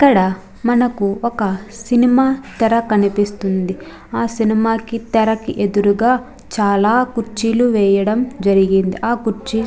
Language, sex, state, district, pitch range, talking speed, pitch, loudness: Telugu, female, Andhra Pradesh, Chittoor, 200-235 Hz, 120 wpm, 220 Hz, -16 LUFS